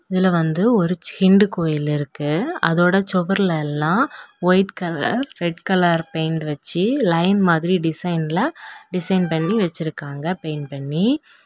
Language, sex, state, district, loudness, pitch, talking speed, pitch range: Tamil, female, Tamil Nadu, Kanyakumari, -20 LUFS, 175 Hz, 120 wpm, 160-195 Hz